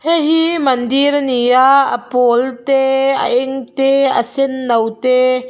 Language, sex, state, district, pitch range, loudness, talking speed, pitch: Mizo, female, Mizoram, Aizawl, 250-275 Hz, -14 LUFS, 165 wpm, 265 Hz